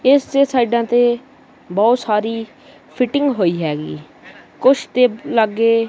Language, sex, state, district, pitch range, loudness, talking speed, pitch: Punjabi, female, Punjab, Kapurthala, 215-260 Hz, -17 LUFS, 120 wpm, 235 Hz